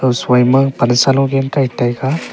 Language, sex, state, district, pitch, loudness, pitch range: Wancho, male, Arunachal Pradesh, Longding, 135 Hz, -14 LUFS, 125-135 Hz